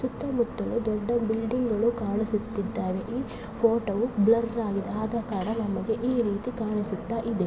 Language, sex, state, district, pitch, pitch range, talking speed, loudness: Kannada, female, Karnataka, Bellary, 225 Hz, 210-235 Hz, 130 wpm, -28 LUFS